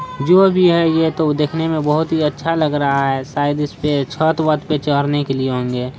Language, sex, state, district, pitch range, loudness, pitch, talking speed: Hindi, female, Bihar, Araria, 140-160 Hz, -16 LUFS, 150 Hz, 210 wpm